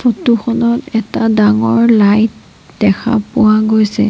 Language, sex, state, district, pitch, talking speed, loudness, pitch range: Assamese, female, Assam, Sonitpur, 220 Hz, 115 wpm, -12 LUFS, 205-235 Hz